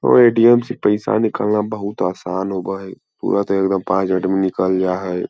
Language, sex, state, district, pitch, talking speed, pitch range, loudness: Hindi, male, Bihar, Lakhisarai, 95 Hz, 205 wpm, 95-105 Hz, -18 LUFS